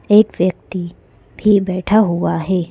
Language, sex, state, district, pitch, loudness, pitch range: Hindi, female, Madhya Pradesh, Bhopal, 185 Hz, -16 LUFS, 180-210 Hz